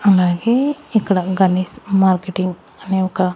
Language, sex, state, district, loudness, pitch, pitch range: Telugu, male, Andhra Pradesh, Annamaya, -17 LUFS, 190 Hz, 185-210 Hz